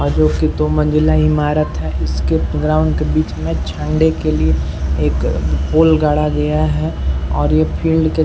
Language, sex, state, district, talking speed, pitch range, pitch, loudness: Hindi, male, Chhattisgarh, Bastar, 160 wpm, 75-80 Hz, 75 Hz, -16 LUFS